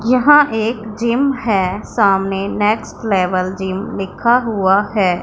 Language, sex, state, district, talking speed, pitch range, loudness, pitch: Hindi, female, Punjab, Pathankot, 125 wpm, 190-235 Hz, -16 LUFS, 205 Hz